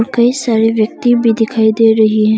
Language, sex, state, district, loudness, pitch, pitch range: Hindi, female, Arunachal Pradesh, Longding, -12 LUFS, 225 Hz, 220-235 Hz